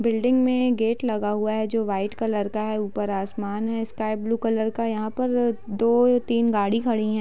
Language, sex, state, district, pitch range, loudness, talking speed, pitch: Hindi, female, Bihar, Sitamarhi, 215-235 Hz, -24 LUFS, 215 wpm, 220 Hz